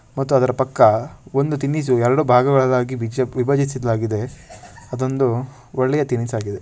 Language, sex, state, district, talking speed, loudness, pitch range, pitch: Kannada, male, Karnataka, Shimoga, 110 wpm, -19 LUFS, 120-135 Hz, 130 Hz